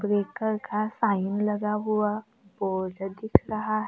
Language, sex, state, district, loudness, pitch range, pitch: Hindi, female, Maharashtra, Gondia, -27 LUFS, 200-215 Hz, 210 Hz